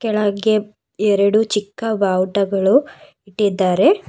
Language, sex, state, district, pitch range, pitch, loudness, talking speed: Kannada, female, Karnataka, Bangalore, 195-220 Hz, 205 Hz, -17 LUFS, 75 wpm